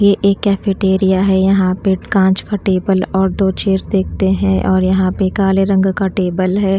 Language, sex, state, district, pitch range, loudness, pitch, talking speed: Hindi, female, Bihar, Patna, 185-195 Hz, -14 LUFS, 190 Hz, 195 wpm